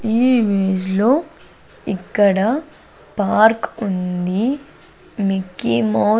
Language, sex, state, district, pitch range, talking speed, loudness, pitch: Telugu, female, Andhra Pradesh, Sri Satya Sai, 190-235 Hz, 85 wpm, -18 LUFS, 205 Hz